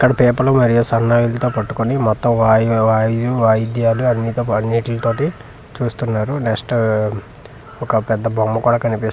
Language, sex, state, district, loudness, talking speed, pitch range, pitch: Telugu, male, Andhra Pradesh, Manyam, -17 LUFS, 130 wpm, 110-120 Hz, 115 Hz